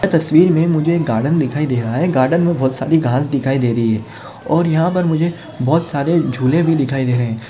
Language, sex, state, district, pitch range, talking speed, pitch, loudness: Hindi, male, Maharashtra, Chandrapur, 130-165 Hz, 255 wpm, 155 Hz, -16 LUFS